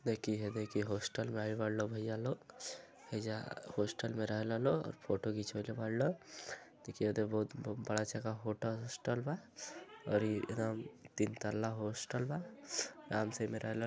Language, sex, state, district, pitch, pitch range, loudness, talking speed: Bhojpuri, male, Uttar Pradesh, Gorakhpur, 110 Hz, 105-115 Hz, -40 LUFS, 180 wpm